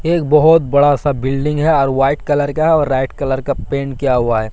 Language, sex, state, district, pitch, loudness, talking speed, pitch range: Hindi, male, Bihar, Katihar, 140 Hz, -15 LUFS, 250 wpm, 135-150 Hz